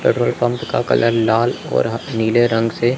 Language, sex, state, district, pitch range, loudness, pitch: Hindi, male, Chandigarh, Chandigarh, 115-120 Hz, -17 LUFS, 115 Hz